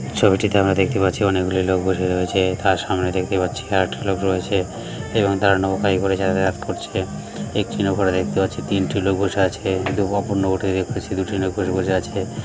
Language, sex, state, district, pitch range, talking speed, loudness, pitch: Bengali, male, West Bengal, Malda, 95-100 Hz, 190 wpm, -20 LUFS, 95 Hz